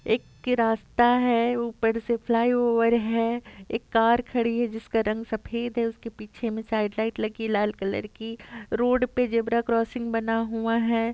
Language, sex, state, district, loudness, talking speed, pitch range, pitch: Hindi, female, Uttar Pradesh, Etah, -25 LUFS, 180 wpm, 225-235 Hz, 230 Hz